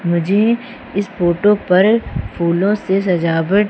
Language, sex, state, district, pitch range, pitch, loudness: Hindi, female, Madhya Pradesh, Umaria, 175-210 Hz, 195 Hz, -16 LUFS